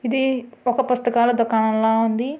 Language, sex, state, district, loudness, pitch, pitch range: Telugu, female, Andhra Pradesh, Srikakulam, -20 LUFS, 240 Hz, 225-250 Hz